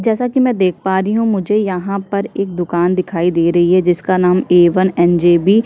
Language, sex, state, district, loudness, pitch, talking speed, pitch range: Hindi, female, Chhattisgarh, Sukma, -14 LUFS, 185 Hz, 255 wpm, 175-200 Hz